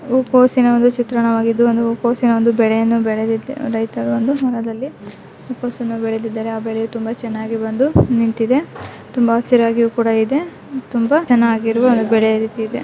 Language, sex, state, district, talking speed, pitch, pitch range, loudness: Kannada, male, Karnataka, Chamarajanagar, 70 wpm, 230 Hz, 225-245 Hz, -16 LUFS